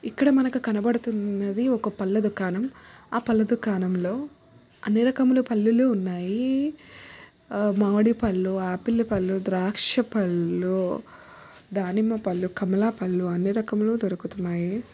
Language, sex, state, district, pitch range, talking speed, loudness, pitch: Telugu, female, Andhra Pradesh, Visakhapatnam, 190-235 Hz, 105 wpm, -25 LUFS, 210 Hz